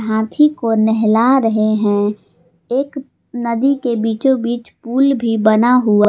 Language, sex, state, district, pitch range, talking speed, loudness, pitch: Hindi, female, Jharkhand, Palamu, 220-255 Hz, 140 wpm, -15 LUFS, 230 Hz